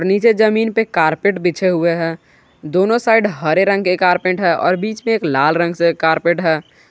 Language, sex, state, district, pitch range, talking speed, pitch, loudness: Hindi, male, Jharkhand, Garhwa, 170-205 Hz, 200 wpm, 180 Hz, -15 LUFS